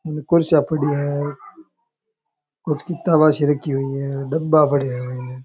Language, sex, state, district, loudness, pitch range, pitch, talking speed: Rajasthani, male, Rajasthan, Churu, -19 LUFS, 140-165 Hz, 150 Hz, 145 wpm